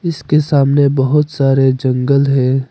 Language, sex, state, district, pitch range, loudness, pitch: Hindi, female, Arunachal Pradesh, Papum Pare, 135-145 Hz, -13 LUFS, 140 Hz